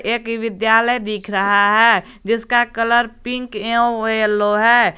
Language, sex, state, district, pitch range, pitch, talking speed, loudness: Hindi, male, Jharkhand, Garhwa, 215-235 Hz, 230 Hz, 130 wpm, -16 LUFS